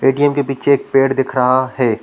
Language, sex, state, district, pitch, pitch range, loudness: Hindi, male, Chhattisgarh, Korba, 135 Hz, 130-140 Hz, -15 LUFS